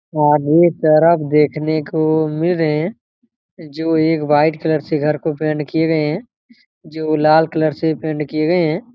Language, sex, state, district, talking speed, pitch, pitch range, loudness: Hindi, male, Chhattisgarh, Raigarh, 180 wpm, 155 Hz, 155-165 Hz, -16 LUFS